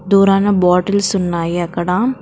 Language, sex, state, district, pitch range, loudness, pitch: Telugu, female, Telangana, Karimnagar, 180-200 Hz, -15 LUFS, 190 Hz